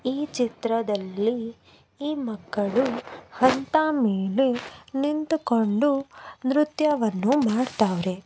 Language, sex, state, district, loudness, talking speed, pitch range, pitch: Kannada, female, Karnataka, Mysore, -25 LUFS, 65 wpm, 220-285 Hz, 250 Hz